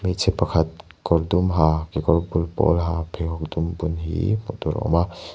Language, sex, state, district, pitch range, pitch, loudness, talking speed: Mizo, male, Mizoram, Aizawl, 80-90 Hz, 85 Hz, -22 LUFS, 200 wpm